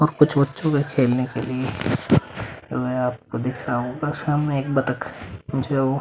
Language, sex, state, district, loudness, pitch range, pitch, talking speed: Hindi, male, Uttar Pradesh, Muzaffarnagar, -23 LUFS, 125-145 Hz, 135 Hz, 80 wpm